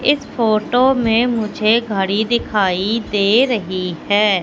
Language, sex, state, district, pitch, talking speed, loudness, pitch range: Hindi, female, Madhya Pradesh, Katni, 215 Hz, 120 wpm, -16 LUFS, 200-240 Hz